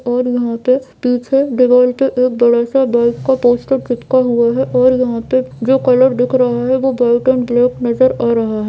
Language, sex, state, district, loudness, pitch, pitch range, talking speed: Hindi, female, Bihar, Jamui, -13 LUFS, 250 Hz, 240-260 Hz, 205 wpm